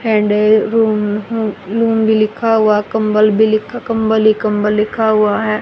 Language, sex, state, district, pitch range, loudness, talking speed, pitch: Hindi, female, Haryana, Rohtak, 210-220 Hz, -14 LUFS, 160 wpm, 215 Hz